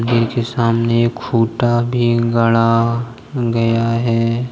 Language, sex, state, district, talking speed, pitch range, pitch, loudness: Hindi, male, Jharkhand, Deoghar, 120 wpm, 115-120 Hz, 115 Hz, -16 LUFS